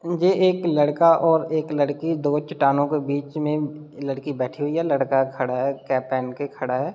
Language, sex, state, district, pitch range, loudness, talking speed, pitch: Hindi, male, Bihar, Muzaffarpur, 135-155 Hz, -22 LUFS, 200 wpm, 145 Hz